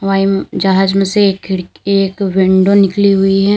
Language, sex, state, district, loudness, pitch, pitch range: Hindi, female, Uttar Pradesh, Lalitpur, -12 LUFS, 195 Hz, 190-200 Hz